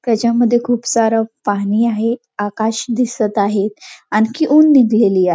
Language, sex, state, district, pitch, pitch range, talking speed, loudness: Marathi, female, Maharashtra, Nagpur, 225 Hz, 210-240 Hz, 145 wpm, -15 LUFS